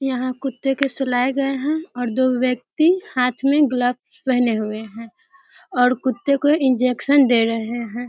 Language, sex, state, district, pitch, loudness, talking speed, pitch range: Hindi, female, Bihar, Muzaffarpur, 255 Hz, -20 LUFS, 170 wpm, 245-280 Hz